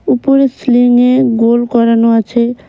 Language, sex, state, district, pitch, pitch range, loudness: Bengali, female, West Bengal, Cooch Behar, 240 Hz, 230-245 Hz, -10 LUFS